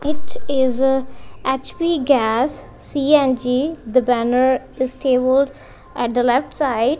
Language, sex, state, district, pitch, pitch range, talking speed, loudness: English, female, Punjab, Kapurthala, 265 Hz, 255-280 Hz, 120 wpm, -19 LUFS